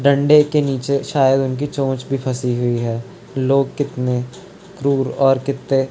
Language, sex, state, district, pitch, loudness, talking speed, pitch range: Hindi, male, Uttarakhand, Tehri Garhwal, 135 Hz, -18 LUFS, 165 wpm, 130-140 Hz